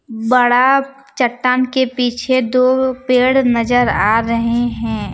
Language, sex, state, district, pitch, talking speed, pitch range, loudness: Hindi, female, Jharkhand, Deoghar, 250 Hz, 115 wpm, 235-255 Hz, -15 LUFS